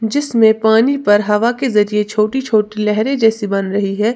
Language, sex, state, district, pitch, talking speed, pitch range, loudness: Hindi, female, Uttar Pradesh, Lalitpur, 220 Hz, 185 wpm, 210-230 Hz, -14 LUFS